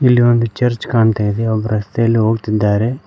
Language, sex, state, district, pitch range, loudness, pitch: Kannada, male, Karnataka, Koppal, 110-120 Hz, -15 LUFS, 115 Hz